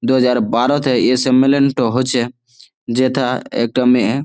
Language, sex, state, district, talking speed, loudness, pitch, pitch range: Bengali, male, West Bengal, Malda, 170 wpm, -15 LUFS, 125 Hz, 120-130 Hz